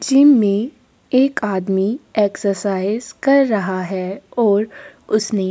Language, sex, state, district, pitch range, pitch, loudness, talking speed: Hindi, female, Chhattisgarh, Korba, 195-255 Hz, 210 Hz, -17 LUFS, 120 wpm